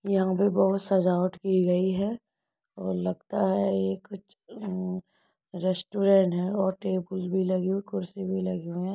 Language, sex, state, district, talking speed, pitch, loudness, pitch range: Hindi, female, Uttar Pradesh, Etah, 170 wpm, 185 Hz, -27 LUFS, 180-195 Hz